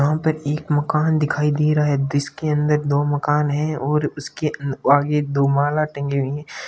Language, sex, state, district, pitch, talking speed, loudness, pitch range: Hindi, male, Rajasthan, Churu, 150 Hz, 190 wpm, -20 LUFS, 145-150 Hz